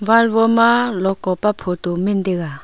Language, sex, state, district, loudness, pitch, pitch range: Wancho, female, Arunachal Pradesh, Longding, -17 LUFS, 195 Hz, 180-225 Hz